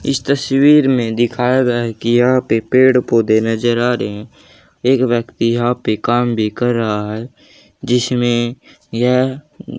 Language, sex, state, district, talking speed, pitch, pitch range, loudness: Hindi, male, Haryana, Jhajjar, 145 wpm, 120 Hz, 115-130 Hz, -15 LUFS